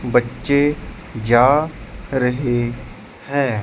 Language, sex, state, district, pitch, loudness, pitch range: Hindi, male, Chandigarh, Chandigarh, 125 Hz, -18 LUFS, 120-140 Hz